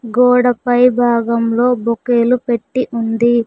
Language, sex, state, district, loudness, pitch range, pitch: Telugu, female, Telangana, Mahabubabad, -14 LUFS, 235-250 Hz, 240 Hz